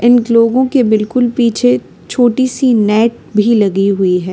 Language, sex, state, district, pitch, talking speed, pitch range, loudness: Hindi, female, Uttar Pradesh, Lalitpur, 230 Hz, 165 wpm, 210-245 Hz, -12 LUFS